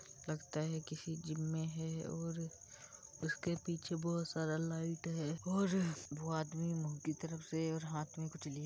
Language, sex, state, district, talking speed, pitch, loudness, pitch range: Hindi, female, Uttar Pradesh, Muzaffarnagar, 175 wpm, 160 Hz, -41 LUFS, 155-165 Hz